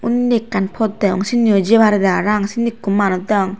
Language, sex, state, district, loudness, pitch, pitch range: Chakma, female, Tripura, Unakoti, -16 LUFS, 210 Hz, 195-225 Hz